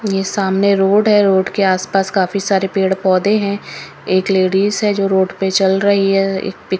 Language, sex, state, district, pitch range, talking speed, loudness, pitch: Hindi, female, Haryana, Rohtak, 190-200 Hz, 195 wpm, -15 LUFS, 195 Hz